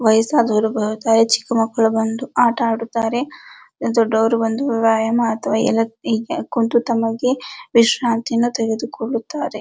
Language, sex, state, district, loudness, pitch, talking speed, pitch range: Kannada, male, Karnataka, Dharwad, -18 LUFS, 230 Hz, 95 wpm, 225-240 Hz